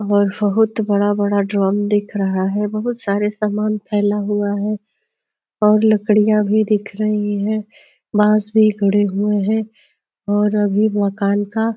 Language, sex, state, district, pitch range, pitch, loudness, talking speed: Hindi, female, Uttar Pradesh, Deoria, 205-215 Hz, 210 Hz, -17 LUFS, 150 wpm